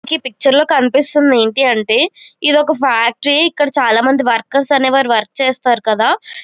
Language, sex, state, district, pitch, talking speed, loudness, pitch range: Telugu, female, Andhra Pradesh, Chittoor, 270 Hz, 160 wpm, -13 LUFS, 235-290 Hz